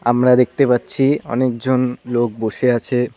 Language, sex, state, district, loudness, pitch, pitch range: Bengali, male, West Bengal, Cooch Behar, -17 LUFS, 125 Hz, 120-130 Hz